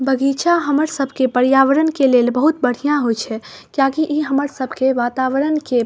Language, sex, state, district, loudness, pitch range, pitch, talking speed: Maithili, female, Bihar, Saharsa, -17 LUFS, 250-295 Hz, 270 Hz, 205 wpm